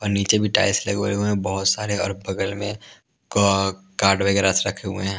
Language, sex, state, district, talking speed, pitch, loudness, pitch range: Hindi, male, Punjab, Pathankot, 220 wpm, 100 Hz, -21 LUFS, 95-100 Hz